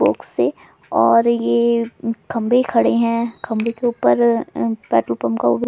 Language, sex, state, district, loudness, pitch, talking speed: Hindi, female, Delhi, New Delhi, -18 LUFS, 230 Hz, 150 wpm